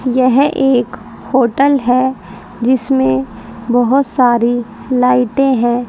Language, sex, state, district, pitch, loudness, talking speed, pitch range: Hindi, female, Haryana, Rohtak, 250 Hz, -13 LUFS, 90 wpm, 240-265 Hz